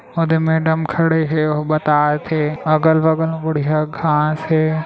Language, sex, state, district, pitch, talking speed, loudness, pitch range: Chhattisgarhi, male, Chhattisgarh, Raigarh, 155 Hz, 185 wpm, -17 LUFS, 155-160 Hz